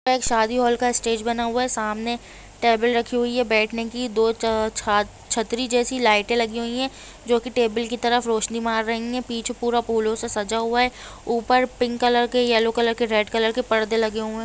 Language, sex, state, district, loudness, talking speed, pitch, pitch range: Hindi, female, Jharkhand, Jamtara, -22 LUFS, 220 wpm, 235 Hz, 225-245 Hz